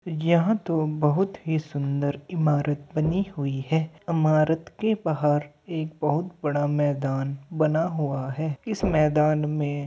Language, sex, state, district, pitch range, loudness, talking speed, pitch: Hindi, male, Uttar Pradesh, Hamirpur, 145-165 Hz, -25 LUFS, 140 wpm, 155 Hz